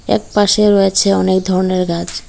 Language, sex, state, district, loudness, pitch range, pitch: Bengali, female, Tripura, Dhalai, -13 LUFS, 185-200 Hz, 190 Hz